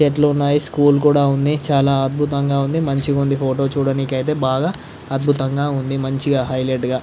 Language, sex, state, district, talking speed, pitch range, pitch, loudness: Telugu, male, Andhra Pradesh, Visakhapatnam, 160 wpm, 135-145 Hz, 140 Hz, -18 LUFS